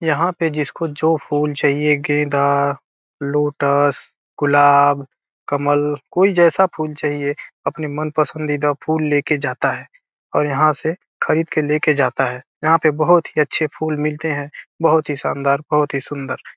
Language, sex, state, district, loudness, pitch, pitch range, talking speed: Hindi, male, Bihar, Gopalganj, -18 LUFS, 150 Hz, 145-155 Hz, 160 wpm